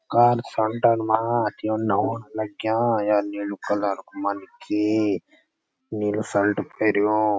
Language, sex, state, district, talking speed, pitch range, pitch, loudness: Garhwali, male, Uttarakhand, Uttarkashi, 105 wpm, 105-110 Hz, 105 Hz, -23 LUFS